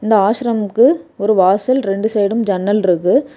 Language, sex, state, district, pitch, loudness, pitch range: Tamil, female, Tamil Nadu, Kanyakumari, 215 Hz, -15 LUFS, 200-245 Hz